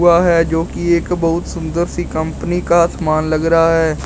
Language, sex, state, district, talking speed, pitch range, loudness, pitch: Hindi, male, Uttar Pradesh, Shamli, 205 wpm, 160-170 Hz, -15 LUFS, 165 Hz